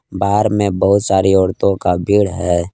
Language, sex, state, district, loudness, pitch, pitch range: Hindi, male, Jharkhand, Palamu, -15 LUFS, 95 Hz, 95-100 Hz